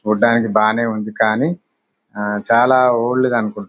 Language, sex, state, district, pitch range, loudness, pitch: Telugu, male, Telangana, Karimnagar, 105-120 Hz, -16 LUFS, 115 Hz